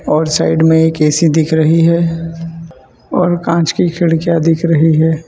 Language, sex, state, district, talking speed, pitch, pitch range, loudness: Hindi, male, Gujarat, Valsad, 170 wpm, 165 Hz, 160-165 Hz, -12 LUFS